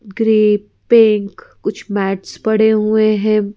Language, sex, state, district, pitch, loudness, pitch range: Hindi, female, Madhya Pradesh, Bhopal, 215 Hz, -15 LUFS, 205-220 Hz